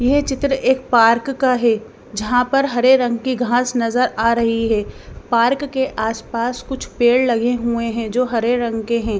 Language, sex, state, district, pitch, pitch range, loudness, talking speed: Hindi, female, Bihar, Patna, 240 Hz, 230-255 Hz, -18 LUFS, 190 wpm